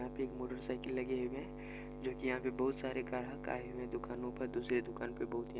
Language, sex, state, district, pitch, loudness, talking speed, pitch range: Maithili, male, Bihar, Supaul, 125 Hz, -41 LUFS, 280 wpm, 125-130 Hz